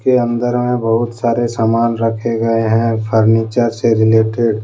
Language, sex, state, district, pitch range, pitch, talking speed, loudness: Hindi, male, Jharkhand, Deoghar, 115-120 Hz, 115 Hz, 155 wpm, -15 LUFS